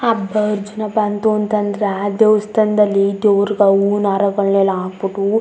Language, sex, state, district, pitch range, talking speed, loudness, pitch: Kannada, female, Karnataka, Chamarajanagar, 200-210 Hz, 135 wpm, -16 LUFS, 205 Hz